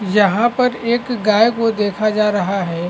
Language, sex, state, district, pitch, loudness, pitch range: Hindi, male, Chhattisgarh, Bastar, 215 Hz, -16 LUFS, 200-235 Hz